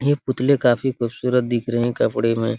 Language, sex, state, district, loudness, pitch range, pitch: Hindi, male, Bihar, Araria, -20 LUFS, 120-130 Hz, 125 Hz